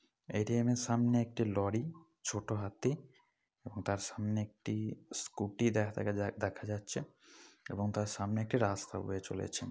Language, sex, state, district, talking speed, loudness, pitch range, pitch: Bengali, male, West Bengal, Kolkata, 155 wpm, -37 LUFS, 100-115 Hz, 105 Hz